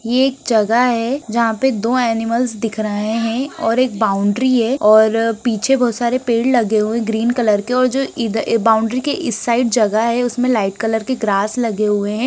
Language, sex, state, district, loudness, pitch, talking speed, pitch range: Hindi, female, Bihar, Begusarai, -16 LUFS, 230 Hz, 205 wpm, 220-250 Hz